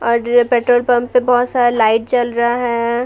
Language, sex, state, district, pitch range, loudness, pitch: Hindi, female, Bihar, Patna, 235-245 Hz, -14 LUFS, 240 Hz